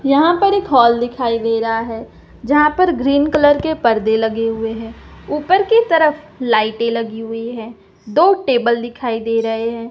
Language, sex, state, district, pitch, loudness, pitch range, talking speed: Hindi, female, Madhya Pradesh, Umaria, 235 Hz, -16 LUFS, 225-300 Hz, 180 wpm